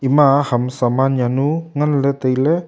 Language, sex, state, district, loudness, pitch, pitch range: Wancho, male, Arunachal Pradesh, Longding, -17 LUFS, 135 Hz, 130-145 Hz